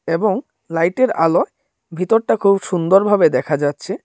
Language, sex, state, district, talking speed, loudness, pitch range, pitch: Bengali, male, Tripura, Dhalai, 135 wpm, -17 LUFS, 165-205 Hz, 185 Hz